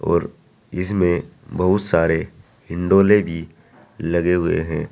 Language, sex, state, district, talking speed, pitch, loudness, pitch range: Hindi, male, Uttar Pradesh, Saharanpur, 110 wpm, 90 Hz, -19 LUFS, 85-100 Hz